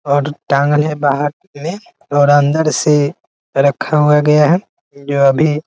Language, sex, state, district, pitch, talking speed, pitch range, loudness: Hindi, male, Bihar, Muzaffarpur, 150 Hz, 160 wpm, 145-155 Hz, -14 LUFS